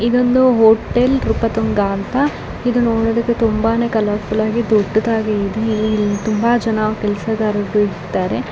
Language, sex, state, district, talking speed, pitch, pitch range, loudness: Kannada, female, Karnataka, Raichur, 100 wpm, 220 Hz, 210-235 Hz, -16 LUFS